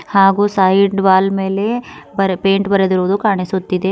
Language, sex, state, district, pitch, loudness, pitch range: Kannada, female, Karnataka, Bidar, 195 Hz, -15 LUFS, 190-200 Hz